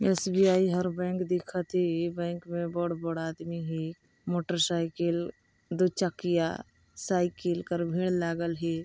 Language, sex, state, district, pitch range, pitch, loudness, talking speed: Chhattisgarhi, female, Chhattisgarh, Balrampur, 170-180 Hz, 175 Hz, -30 LUFS, 135 wpm